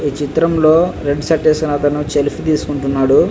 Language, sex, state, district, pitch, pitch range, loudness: Telugu, male, Andhra Pradesh, Visakhapatnam, 150 Hz, 145-155 Hz, -15 LUFS